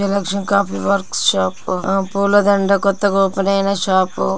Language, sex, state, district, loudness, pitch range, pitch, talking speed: Telugu, female, Telangana, Karimnagar, -16 LUFS, 190-200 Hz, 195 Hz, 165 wpm